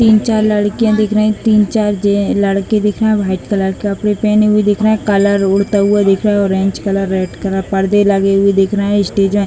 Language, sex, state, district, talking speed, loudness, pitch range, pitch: Hindi, female, Bihar, Sitamarhi, 245 wpm, -13 LUFS, 195-210 Hz, 205 Hz